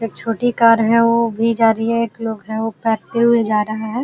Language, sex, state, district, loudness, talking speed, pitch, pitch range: Hindi, female, Uttar Pradesh, Jalaun, -17 LUFS, 270 wpm, 225 Hz, 220-230 Hz